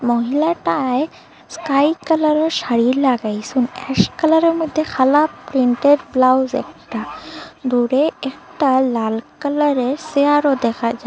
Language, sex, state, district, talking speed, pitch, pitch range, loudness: Bengali, female, Assam, Hailakandi, 105 wpm, 270 Hz, 250-300 Hz, -17 LUFS